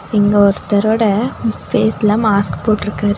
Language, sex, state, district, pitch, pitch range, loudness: Tamil, female, Tamil Nadu, Nilgiris, 210 Hz, 205-220 Hz, -15 LUFS